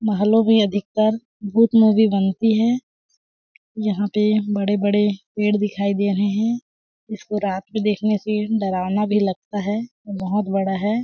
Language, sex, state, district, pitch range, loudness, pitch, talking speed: Hindi, female, Chhattisgarh, Balrampur, 200-215 Hz, -20 LUFS, 210 Hz, 145 wpm